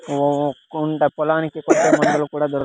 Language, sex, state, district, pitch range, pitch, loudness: Telugu, male, Andhra Pradesh, Sri Satya Sai, 145-155 Hz, 150 Hz, -19 LUFS